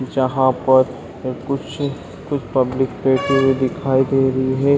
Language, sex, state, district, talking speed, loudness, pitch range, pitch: Hindi, male, Bihar, Saran, 165 wpm, -18 LUFS, 130-140 Hz, 130 Hz